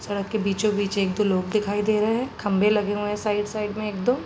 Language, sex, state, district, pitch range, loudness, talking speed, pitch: Hindi, female, Uttar Pradesh, Gorakhpur, 205-215 Hz, -24 LUFS, 255 wpm, 210 Hz